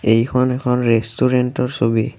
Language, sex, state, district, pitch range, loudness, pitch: Assamese, male, Assam, Kamrup Metropolitan, 115-125 Hz, -17 LUFS, 125 Hz